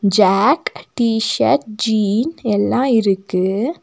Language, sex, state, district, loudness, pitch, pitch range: Tamil, female, Tamil Nadu, Nilgiris, -17 LUFS, 215 Hz, 200-250 Hz